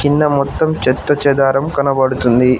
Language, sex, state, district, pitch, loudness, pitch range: Telugu, male, Telangana, Mahabubabad, 140 Hz, -14 LUFS, 135-145 Hz